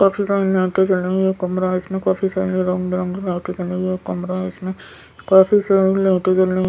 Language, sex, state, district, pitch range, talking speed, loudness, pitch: Hindi, female, Bihar, Patna, 185-190 Hz, 240 wpm, -18 LUFS, 185 Hz